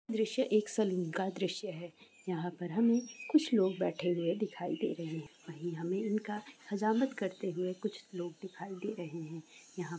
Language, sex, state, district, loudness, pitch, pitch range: Hindi, female, Andhra Pradesh, Chittoor, -35 LUFS, 190 Hz, 175-215 Hz